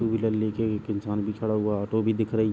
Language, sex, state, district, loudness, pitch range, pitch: Hindi, male, Uttar Pradesh, Jalaun, -27 LUFS, 105-110 Hz, 110 Hz